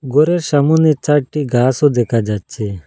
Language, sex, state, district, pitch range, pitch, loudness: Bengali, male, Assam, Hailakandi, 115-150 Hz, 140 Hz, -15 LUFS